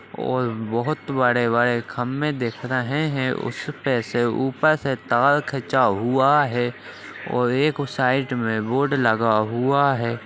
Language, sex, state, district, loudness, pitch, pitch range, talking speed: Hindi, male, Uttarakhand, Tehri Garhwal, -21 LUFS, 130 Hz, 120-140 Hz, 150 wpm